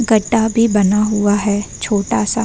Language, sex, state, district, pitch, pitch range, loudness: Hindi, female, Uttar Pradesh, Varanasi, 210 Hz, 205-225 Hz, -15 LUFS